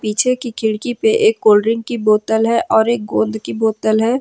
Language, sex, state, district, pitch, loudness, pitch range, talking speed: Hindi, female, Jharkhand, Ranchi, 225 Hz, -16 LUFS, 220-240 Hz, 230 wpm